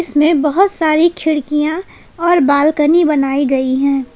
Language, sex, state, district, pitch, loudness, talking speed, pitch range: Hindi, female, Jharkhand, Palamu, 300 Hz, -13 LUFS, 130 wpm, 285-335 Hz